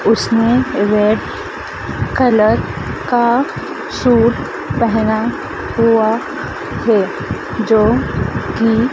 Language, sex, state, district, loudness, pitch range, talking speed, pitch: Hindi, female, Madhya Pradesh, Dhar, -15 LUFS, 220-240 Hz, 65 wpm, 230 Hz